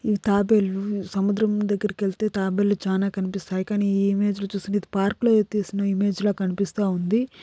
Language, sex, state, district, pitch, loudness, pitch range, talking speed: Telugu, female, Andhra Pradesh, Chittoor, 200 Hz, -23 LUFS, 195-205 Hz, 180 wpm